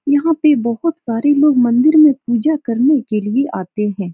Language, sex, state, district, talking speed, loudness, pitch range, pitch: Hindi, female, Uttar Pradesh, Etah, 190 wpm, -15 LUFS, 230-295 Hz, 270 Hz